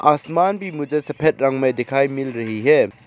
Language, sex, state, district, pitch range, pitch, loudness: Hindi, male, Arunachal Pradesh, Lower Dibang Valley, 135-155 Hz, 145 Hz, -19 LUFS